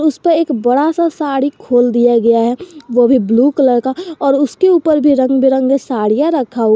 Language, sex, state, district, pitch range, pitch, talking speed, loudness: Hindi, male, Jharkhand, Garhwa, 245-305 Hz, 270 Hz, 205 wpm, -13 LUFS